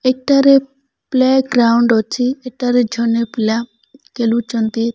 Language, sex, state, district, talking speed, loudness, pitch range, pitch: Odia, male, Odisha, Malkangiri, 95 wpm, -15 LUFS, 230-265 Hz, 245 Hz